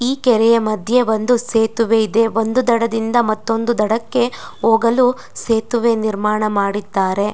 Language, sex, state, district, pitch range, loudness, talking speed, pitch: Kannada, female, Karnataka, Dakshina Kannada, 215-235 Hz, -16 LUFS, 115 wpm, 225 Hz